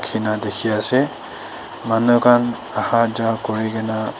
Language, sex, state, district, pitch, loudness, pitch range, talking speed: Nagamese, female, Nagaland, Dimapur, 115 Hz, -18 LUFS, 110-120 Hz, 100 wpm